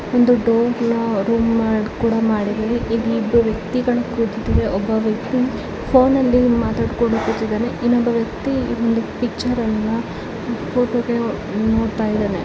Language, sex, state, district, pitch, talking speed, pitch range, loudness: Kannada, female, Karnataka, Chamarajanagar, 230 Hz, 110 wpm, 220-240 Hz, -19 LUFS